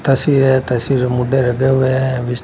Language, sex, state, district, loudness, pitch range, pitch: Hindi, male, Rajasthan, Bikaner, -15 LUFS, 125-135 Hz, 130 Hz